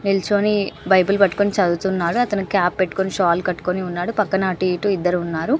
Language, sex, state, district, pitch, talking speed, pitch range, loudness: Telugu, female, Telangana, Karimnagar, 190 Hz, 160 wpm, 180-200 Hz, -19 LUFS